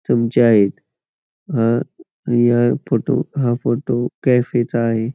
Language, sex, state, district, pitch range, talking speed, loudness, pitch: Marathi, male, Maharashtra, Pune, 115-125 Hz, 115 wpm, -17 LUFS, 120 Hz